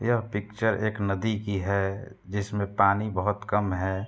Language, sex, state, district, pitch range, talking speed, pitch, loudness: Hindi, male, Uttar Pradesh, Hamirpur, 100-105 Hz, 160 wpm, 100 Hz, -27 LUFS